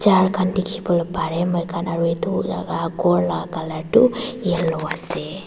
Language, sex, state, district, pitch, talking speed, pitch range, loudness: Nagamese, female, Nagaland, Dimapur, 175 Hz, 130 wpm, 165-190 Hz, -21 LUFS